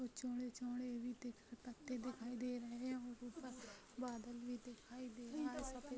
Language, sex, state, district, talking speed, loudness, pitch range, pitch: Hindi, female, Chhattisgarh, Jashpur, 160 wpm, -49 LUFS, 240-255 Hz, 245 Hz